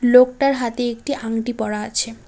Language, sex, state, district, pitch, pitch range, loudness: Bengali, female, West Bengal, Cooch Behar, 240 Hz, 225-250 Hz, -20 LUFS